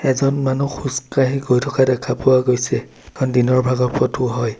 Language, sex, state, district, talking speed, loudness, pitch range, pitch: Assamese, male, Assam, Sonitpur, 170 wpm, -18 LUFS, 125-135 Hz, 130 Hz